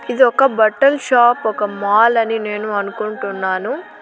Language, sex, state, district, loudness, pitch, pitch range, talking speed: Telugu, female, Andhra Pradesh, Annamaya, -16 LUFS, 220 Hz, 205-245 Hz, 135 wpm